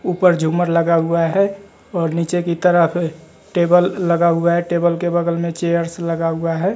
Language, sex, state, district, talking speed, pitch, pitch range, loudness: Hindi, male, Bihar, West Champaran, 185 wpm, 170 Hz, 170-175 Hz, -17 LUFS